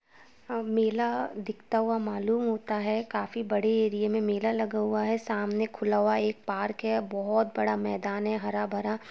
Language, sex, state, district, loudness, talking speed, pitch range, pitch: Hindi, female, Uttarakhand, Tehri Garhwal, -29 LUFS, 180 wpm, 210-225 Hz, 215 Hz